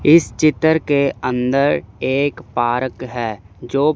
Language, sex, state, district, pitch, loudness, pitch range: Hindi, male, Chandigarh, Chandigarh, 135 Hz, -18 LUFS, 120-150 Hz